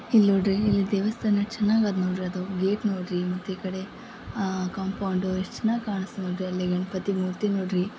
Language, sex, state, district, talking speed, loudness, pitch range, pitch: Kannada, female, Karnataka, Gulbarga, 150 wpm, -26 LUFS, 185-205 Hz, 190 Hz